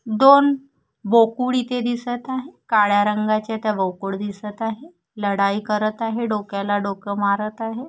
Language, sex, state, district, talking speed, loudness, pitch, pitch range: Marathi, female, Maharashtra, Gondia, 135 wpm, -21 LUFS, 215 Hz, 205-245 Hz